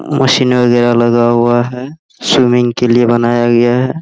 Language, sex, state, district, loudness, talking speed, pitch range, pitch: Hindi, male, Bihar, Araria, -11 LUFS, 165 wpm, 120-125 Hz, 120 Hz